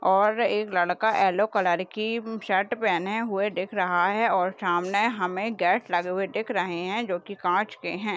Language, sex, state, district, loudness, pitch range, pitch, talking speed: Hindi, female, Maharashtra, Nagpur, -25 LUFS, 180-215 Hz, 195 Hz, 205 wpm